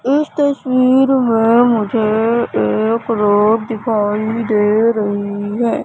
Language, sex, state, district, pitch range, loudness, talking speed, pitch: Hindi, female, Madhya Pradesh, Katni, 210-240 Hz, -15 LUFS, 100 wpm, 225 Hz